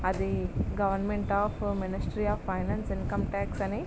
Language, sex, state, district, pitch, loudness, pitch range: Telugu, male, Andhra Pradesh, Srikakulam, 195 Hz, -31 LUFS, 185-200 Hz